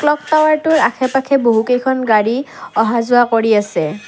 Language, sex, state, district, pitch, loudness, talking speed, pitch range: Assamese, female, Assam, Kamrup Metropolitan, 250 Hz, -14 LUFS, 130 wpm, 225-280 Hz